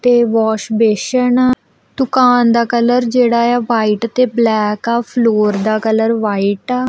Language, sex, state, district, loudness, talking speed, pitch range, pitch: Punjabi, female, Punjab, Kapurthala, -14 LUFS, 155 wpm, 220-245 Hz, 235 Hz